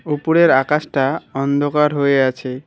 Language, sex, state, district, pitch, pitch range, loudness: Bengali, male, West Bengal, Alipurduar, 145 Hz, 135-150 Hz, -16 LUFS